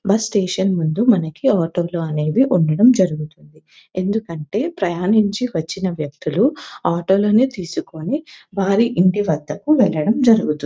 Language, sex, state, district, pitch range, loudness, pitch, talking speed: Telugu, female, Telangana, Nalgonda, 165-220 Hz, -18 LUFS, 190 Hz, 125 wpm